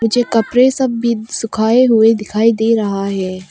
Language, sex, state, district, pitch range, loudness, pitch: Hindi, female, Arunachal Pradesh, Papum Pare, 215-235 Hz, -14 LUFS, 225 Hz